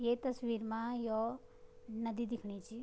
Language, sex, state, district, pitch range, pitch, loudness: Garhwali, female, Uttarakhand, Tehri Garhwal, 225-245 Hz, 235 Hz, -39 LUFS